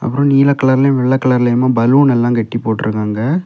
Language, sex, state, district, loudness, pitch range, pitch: Tamil, male, Tamil Nadu, Kanyakumari, -13 LUFS, 115-135 Hz, 125 Hz